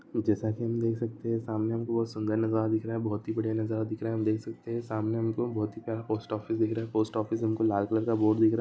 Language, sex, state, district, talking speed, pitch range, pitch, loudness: Hindi, male, Andhra Pradesh, Anantapur, 245 wpm, 110-115 Hz, 110 Hz, -30 LUFS